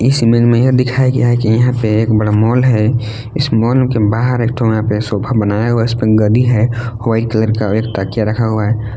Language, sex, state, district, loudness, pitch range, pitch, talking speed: Hindi, male, Jharkhand, Palamu, -13 LUFS, 110-120 Hz, 115 Hz, 245 wpm